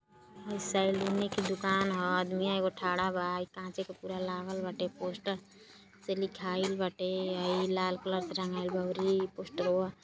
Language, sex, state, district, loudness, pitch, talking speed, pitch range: Hindi, female, Uttar Pradesh, Gorakhpur, -33 LUFS, 185 Hz, 165 wpm, 180-195 Hz